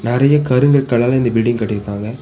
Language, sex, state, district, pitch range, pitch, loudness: Tamil, female, Tamil Nadu, Nilgiris, 110-130 Hz, 120 Hz, -15 LUFS